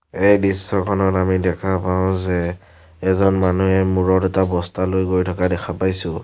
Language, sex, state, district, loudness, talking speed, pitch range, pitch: Assamese, male, Assam, Sonitpur, -19 LUFS, 155 wpm, 90-95 Hz, 95 Hz